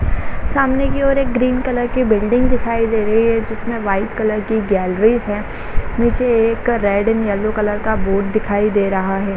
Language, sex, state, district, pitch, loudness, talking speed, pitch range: Hindi, female, Chhattisgarh, Raigarh, 220 Hz, -17 LUFS, 200 wpm, 205-240 Hz